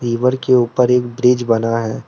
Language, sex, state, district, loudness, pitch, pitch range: Hindi, male, Arunachal Pradesh, Lower Dibang Valley, -15 LUFS, 125 Hz, 115-125 Hz